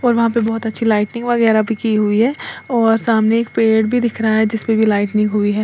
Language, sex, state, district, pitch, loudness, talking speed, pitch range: Hindi, female, Uttar Pradesh, Lalitpur, 225 Hz, -16 LUFS, 245 wpm, 215-230 Hz